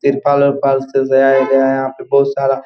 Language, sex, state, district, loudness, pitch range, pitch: Hindi, male, Bihar, Gopalganj, -13 LUFS, 135-140 Hz, 135 Hz